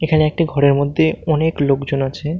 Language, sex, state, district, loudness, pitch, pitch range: Bengali, male, West Bengal, Malda, -17 LUFS, 150 Hz, 140-160 Hz